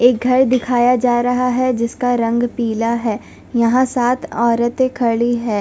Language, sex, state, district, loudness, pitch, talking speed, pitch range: Hindi, female, Punjab, Fazilka, -16 LUFS, 245 Hz, 160 wpm, 235-250 Hz